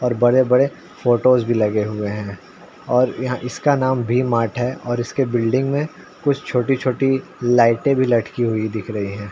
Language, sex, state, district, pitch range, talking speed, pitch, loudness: Hindi, male, Uttar Pradesh, Ghazipur, 115-130 Hz, 175 wpm, 125 Hz, -19 LUFS